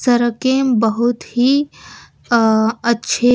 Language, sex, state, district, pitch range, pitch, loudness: Hindi, female, Karnataka, Bangalore, 230-250 Hz, 240 Hz, -16 LUFS